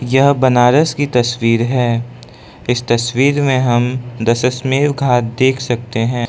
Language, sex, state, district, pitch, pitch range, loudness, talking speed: Hindi, male, Arunachal Pradesh, Lower Dibang Valley, 125 Hz, 120-130 Hz, -15 LUFS, 135 wpm